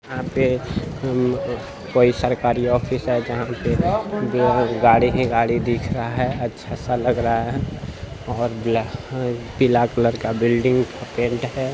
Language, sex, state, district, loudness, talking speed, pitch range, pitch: Hindi, male, Bihar, Saran, -21 LUFS, 155 wpm, 115-125 Hz, 120 Hz